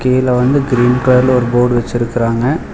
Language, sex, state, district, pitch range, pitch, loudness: Tamil, male, Tamil Nadu, Chennai, 120-130 Hz, 125 Hz, -13 LUFS